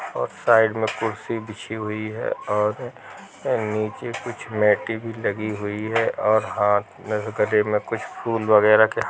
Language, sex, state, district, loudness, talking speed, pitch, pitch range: Hindi, male, Chhattisgarh, Rajnandgaon, -22 LUFS, 165 wpm, 110 Hz, 105-110 Hz